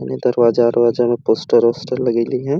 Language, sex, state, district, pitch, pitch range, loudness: Awadhi, male, Chhattisgarh, Balrampur, 120 Hz, 115-125 Hz, -16 LUFS